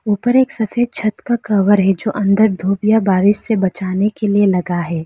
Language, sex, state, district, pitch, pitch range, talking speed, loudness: Hindi, female, Arunachal Pradesh, Lower Dibang Valley, 205 Hz, 195-220 Hz, 215 wpm, -15 LUFS